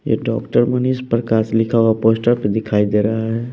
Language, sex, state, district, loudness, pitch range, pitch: Hindi, male, Bihar, West Champaran, -17 LUFS, 110-120 Hz, 115 Hz